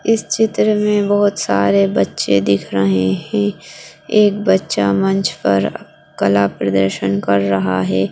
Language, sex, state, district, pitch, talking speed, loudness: Hindi, female, Bihar, Jahanabad, 100 Hz, 135 wpm, -16 LUFS